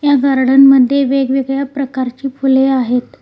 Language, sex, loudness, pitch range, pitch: Marathi, female, -12 LUFS, 260-275 Hz, 270 Hz